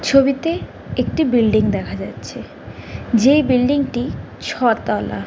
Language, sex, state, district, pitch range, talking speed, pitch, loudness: Bengali, female, West Bengal, Jhargram, 225-280 Hz, 125 wpm, 255 Hz, -18 LUFS